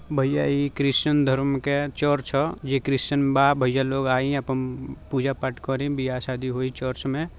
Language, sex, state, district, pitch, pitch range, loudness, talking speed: Bhojpuri, male, Bihar, Gopalganj, 135 Hz, 130-140 Hz, -24 LUFS, 180 wpm